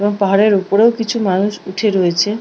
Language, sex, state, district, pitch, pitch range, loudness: Bengali, female, West Bengal, Purulia, 205 Hz, 190-215 Hz, -15 LUFS